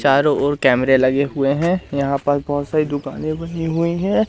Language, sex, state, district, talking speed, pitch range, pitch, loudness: Hindi, male, Madhya Pradesh, Umaria, 195 wpm, 135-160 Hz, 145 Hz, -18 LUFS